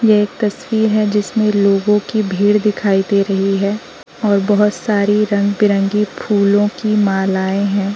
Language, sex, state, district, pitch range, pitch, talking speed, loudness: Hindi, female, Uttar Pradesh, Varanasi, 200-210 Hz, 205 Hz, 160 wpm, -15 LUFS